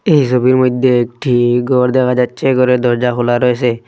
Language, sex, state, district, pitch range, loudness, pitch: Bengali, male, Assam, Hailakandi, 120-130 Hz, -13 LUFS, 125 Hz